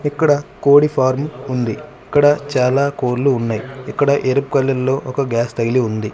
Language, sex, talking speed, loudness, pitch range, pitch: Telugu, male, 155 wpm, -17 LUFS, 125-145 Hz, 135 Hz